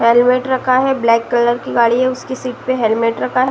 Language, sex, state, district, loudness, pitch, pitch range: Hindi, female, Uttar Pradesh, Jalaun, -15 LUFS, 250 Hz, 235-255 Hz